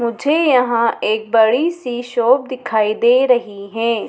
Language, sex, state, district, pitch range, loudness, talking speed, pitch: Hindi, female, Madhya Pradesh, Dhar, 225-255 Hz, -16 LUFS, 145 wpm, 235 Hz